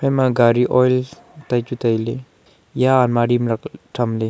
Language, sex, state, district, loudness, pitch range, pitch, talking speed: Wancho, male, Arunachal Pradesh, Longding, -18 LUFS, 120-130 Hz, 125 Hz, 155 wpm